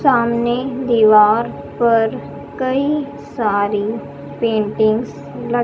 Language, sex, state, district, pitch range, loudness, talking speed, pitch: Hindi, female, Haryana, Charkhi Dadri, 215-245 Hz, -17 LUFS, 75 wpm, 230 Hz